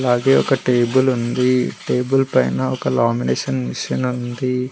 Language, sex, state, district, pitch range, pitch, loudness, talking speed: Telugu, male, Telangana, Mahabubabad, 115-130 Hz, 125 Hz, -18 LUFS, 125 wpm